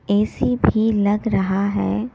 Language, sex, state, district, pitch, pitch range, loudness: Hindi, female, Delhi, New Delhi, 205 Hz, 200-220 Hz, -19 LUFS